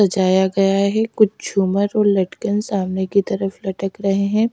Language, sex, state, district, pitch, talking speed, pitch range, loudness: Hindi, female, Chhattisgarh, Raipur, 195 Hz, 170 wpm, 190-205 Hz, -18 LUFS